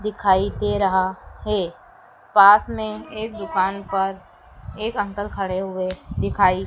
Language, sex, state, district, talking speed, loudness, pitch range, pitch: Hindi, female, Madhya Pradesh, Dhar, 125 wpm, -21 LUFS, 190-215 Hz, 200 Hz